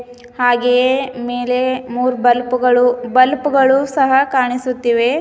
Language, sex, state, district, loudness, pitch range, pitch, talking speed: Kannada, female, Karnataka, Bidar, -15 LUFS, 245-260 Hz, 250 Hz, 105 wpm